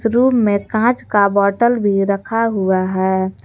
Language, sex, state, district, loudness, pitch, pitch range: Hindi, female, Jharkhand, Garhwa, -16 LUFS, 200 Hz, 195-230 Hz